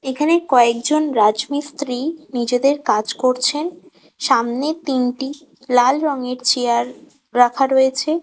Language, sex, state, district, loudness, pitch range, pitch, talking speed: Bengali, female, West Bengal, Kolkata, -18 LUFS, 245-295 Hz, 265 Hz, 95 wpm